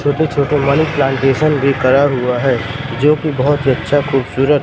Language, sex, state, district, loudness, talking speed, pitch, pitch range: Hindi, male, Madhya Pradesh, Katni, -14 LUFS, 170 wpm, 140 Hz, 135-145 Hz